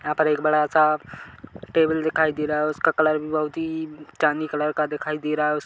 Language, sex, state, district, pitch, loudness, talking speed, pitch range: Hindi, male, Chhattisgarh, Kabirdham, 155 Hz, -23 LUFS, 245 wpm, 150-155 Hz